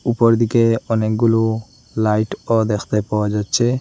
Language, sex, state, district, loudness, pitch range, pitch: Bengali, male, Assam, Hailakandi, -18 LUFS, 105-115 Hz, 115 Hz